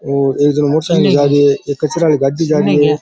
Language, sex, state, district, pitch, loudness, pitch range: Rajasthani, male, Rajasthan, Churu, 145 Hz, -13 LUFS, 145-155 Hz